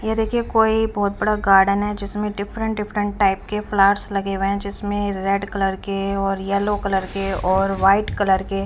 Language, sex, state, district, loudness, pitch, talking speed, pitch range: Hindi, female, Chandigarh, Chandigarh, -20 LUFS, 200 Hz, 195 wpm, 195-210 Hz